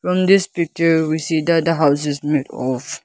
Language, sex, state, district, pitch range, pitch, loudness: English, male, Nagaland, Kohima, 145-170 Hz, 160 Hz, -18 LUFS